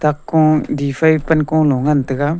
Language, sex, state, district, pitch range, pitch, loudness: Wancho, male, Arunachal Pradesh, Longding, 145-155 Hz, 150 Hz, -15 LUFS